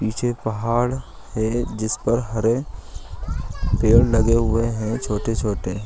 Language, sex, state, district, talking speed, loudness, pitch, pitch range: Hindi, male, Bihar, Gaya, 115 wpm, -21 LUFS, 110 Hz, 105-115 Hz